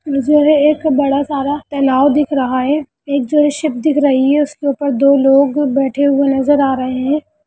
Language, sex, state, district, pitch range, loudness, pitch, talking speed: Hindi, female, Bihar, Lakhisarai, 275-295 Hz, -14 LUFS, 280 Hz, 200 wpm